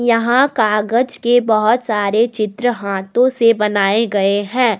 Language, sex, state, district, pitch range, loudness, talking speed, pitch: Hindi, female, Jharkhand, Deoghar, 210-245 Hz, -15 LUFS, 140 wpm, 225 Hz